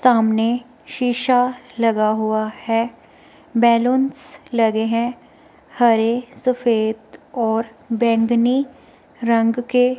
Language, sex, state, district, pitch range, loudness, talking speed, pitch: Hindi, female, Himachal Pradesh, Shimla, 225-250 Hz, -19 LUFS, 85 wpm, 235 Hz